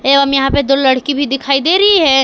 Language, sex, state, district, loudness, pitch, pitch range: Hindi, female, Jharkhand, Palamu, -12 LUFS, 275 Hz, 270-285 Hz